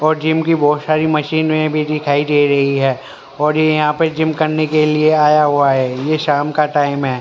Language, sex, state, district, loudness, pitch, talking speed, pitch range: Hindi, male, Haryana, Rohtak, -15 LUFS, 150 Hz, 225 wpm, 145-155 Hz